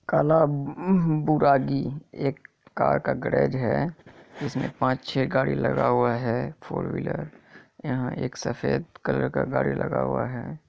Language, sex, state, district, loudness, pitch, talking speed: Hindi, male, Bihar, Kishanganj, -25 LUFS, 130 Hz, 145 wpm